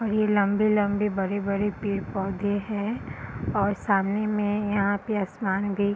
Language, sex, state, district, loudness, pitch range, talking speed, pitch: Hindi, female, Bihar, Purnia, -26 LUFS, 200-210 Hz, 150 wpm, 205 Hz